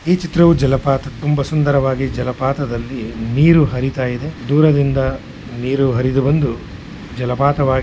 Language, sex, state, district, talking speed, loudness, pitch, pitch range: Kannada, male, Karnataka, Shimoga, 115 wpm, -16 LUFS, 135 Hz, 130-145 Hz